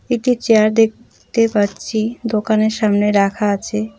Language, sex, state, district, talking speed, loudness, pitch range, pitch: Bengali, female, West Bengal, Cooch Behar, 120 wpm, -16 LUFS, 205-225 Hz, 215 Hz